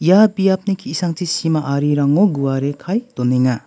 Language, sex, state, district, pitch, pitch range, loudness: Garo, male, Meghalaya, West Garo Hills, 160 Hz, 140-190 Hz, -17 LUFS